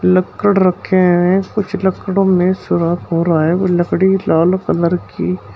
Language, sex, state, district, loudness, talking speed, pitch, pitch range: Hindi, male, Uttar Pradesh, Shamli, -15 LUFS, 175 wpm, 185 Hz, 170-190 Hz